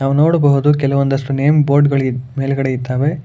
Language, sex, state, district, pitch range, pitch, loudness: Kannada, male, Karnataka, Bangalore, 135-145 Hz, 140 Hz, -15 LUFS